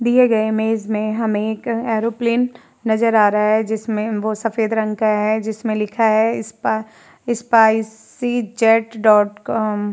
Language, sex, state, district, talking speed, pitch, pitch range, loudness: Hindi, female, Uttar Pradesh, Varanasi, 165 wpm, 220 Hz, 215-230 Hz, -18 LUFS